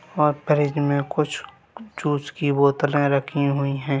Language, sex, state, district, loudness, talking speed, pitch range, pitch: Hindi, male, Bihar, Gaya, -22 LUFS, 150 wpm, 140-150 Hz, 145 Hz